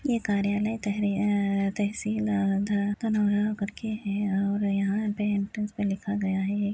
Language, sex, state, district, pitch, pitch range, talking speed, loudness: Hindi, female, Uttar Pradesh, Jyotiba Phule Nagar, 205 Hz, 200-210 Hz, 170 wpm, -27 LUFS